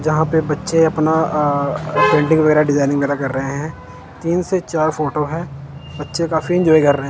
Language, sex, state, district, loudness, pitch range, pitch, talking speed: Hindi, male, Punjab, Kapurthala, -17 LUFS, 145-160 Hz, 155 Hz, 185 wpm